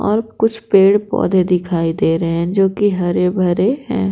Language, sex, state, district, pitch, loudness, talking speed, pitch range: Hindi, female, Bihar, Patna, 190 Hz, -16 LUFS, 190 wpm, 175-210 Hz